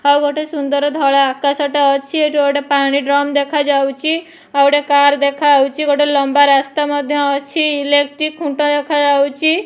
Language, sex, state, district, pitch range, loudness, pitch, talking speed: Odia, female, Odisha, Nuapada, 280-295 Hz, -14 LUFS, 285 Hz, 145 wpm